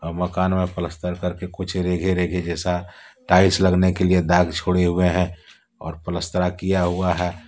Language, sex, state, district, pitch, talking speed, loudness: Hindi, male, Jharkhand, Deoghar, 90 Hz, 150 wpm, -21 LUFS